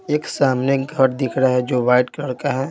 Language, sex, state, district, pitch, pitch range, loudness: Hindi, male, Bihar, Patna, 130 Hz, 130-145 Hz, -19 LUFS